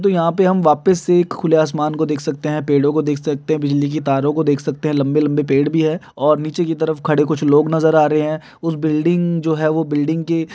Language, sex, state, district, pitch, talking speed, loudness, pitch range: Hindi, male, Uttar Pradesh, Hamirpur, 155 Hz, 280 wpm, -17 LUFS, 150-160 Hz